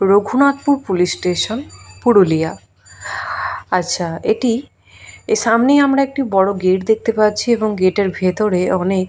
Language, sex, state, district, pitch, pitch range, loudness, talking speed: Bengali, female, West Bengal, Purulia, 200 Hz, 185-235 Hz, -16 LUFS, 110 wpm